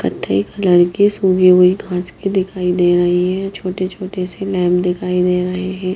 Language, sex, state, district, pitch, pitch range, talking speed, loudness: Hindi, female, Haryana, Jhajjar, 185 Hz, 180-190 Hz, 180 wpm, -16 LUFS